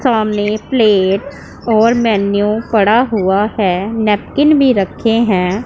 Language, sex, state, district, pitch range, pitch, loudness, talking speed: Hindi, female, Punjab, Pathankot, 200-230 Hz, 215 Hz, -13 LUFS, 115 wpm